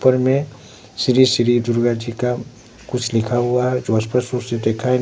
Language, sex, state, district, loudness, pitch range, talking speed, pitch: Hindi, male, Bihar, Katihar, -19 LUFS, 115-125 Hz, 190 wpm, 120 Hz